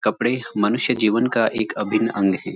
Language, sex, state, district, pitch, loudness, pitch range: Hindi, male, Uttarakhand, Uttarkashi, 110 Hz, -20 LUFS, 105-120 Hz